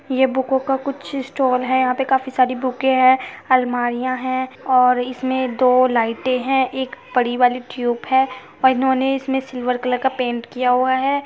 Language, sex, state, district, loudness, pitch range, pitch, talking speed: Hindi, female, Uttar Pradesh, Muzaffarnagar, -19 LUFS, 250-265 Hz, 255 Hz, 185 wpm